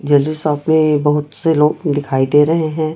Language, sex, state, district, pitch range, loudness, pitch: Hindi, female, Chhattisgarh, Raipur, 145-155 Hz, -15 LUFS, 150 Hz